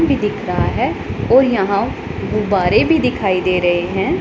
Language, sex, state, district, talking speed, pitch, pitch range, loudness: Hindi, female, Punjab, Pathankot, 170 wpm, 195 Hz, 185-260 Hz, -16 LUFS